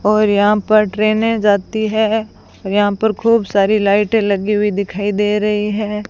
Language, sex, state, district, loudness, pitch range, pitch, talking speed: Hindi, female, Rajasthan, Bikaner, -15 LUFS, 205-215 Hz, 210 Hz, 175 wpm